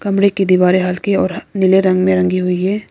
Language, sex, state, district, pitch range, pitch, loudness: Hindi, female, Arunachal Pradesh, Lower Dibang Valley, 185-195 Hz, 185 Hz, -14 LUFS